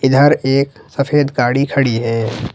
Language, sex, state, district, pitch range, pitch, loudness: Hindi, male, Jharkhand, Ranchi, 120-140 Hz, 135 Hz, -15 LUFS